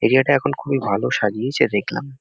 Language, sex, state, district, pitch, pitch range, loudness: Bengali, male, West Bengal, Kolkata, 135 Hz, 130-140 Hz, -20 LUFS